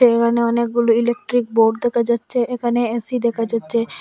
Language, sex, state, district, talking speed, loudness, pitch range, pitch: Bengali, female, Assam, Hailakandi, 150 wpm, -18 LUFS, 230-240 Hz, 235 Hz